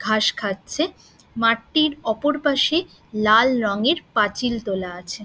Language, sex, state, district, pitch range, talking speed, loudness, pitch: Bengali, female, West Bengal, Dakshin Dinajpur, 210-290 Hz, 115 wpm, -21 LUFS, 230 Hz